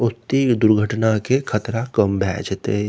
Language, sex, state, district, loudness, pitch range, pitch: Maithili, male, Bihar, Saharsa, -19 LUFS, 105-120 Hz, 110 Hz